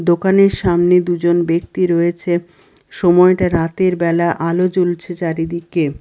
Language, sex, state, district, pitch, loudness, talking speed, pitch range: Bengali, female, Bihar, Katihar, 175 Hz, -15 LUFS, 110 wpm, 170-180 Hz